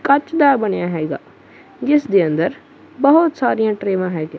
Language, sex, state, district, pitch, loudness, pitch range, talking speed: Punjabi, female, Punjab, Kapurthala, 215 Hz, -17 LUFS, 175-285 Hz, 150 wpm